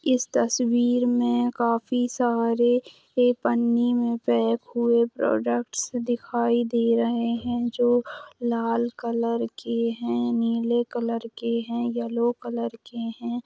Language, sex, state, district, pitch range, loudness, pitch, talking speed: Hindi, female, Bihar, Gopalganj, 230-240 Hz, -24 LUFS, 235 Hz, 130 wpm